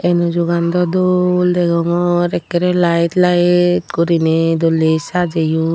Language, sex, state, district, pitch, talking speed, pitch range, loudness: Chakma, female, Tripura, Dhalai, 175 Hz, 115 wpm, 170-175 Hz, -15 LUFS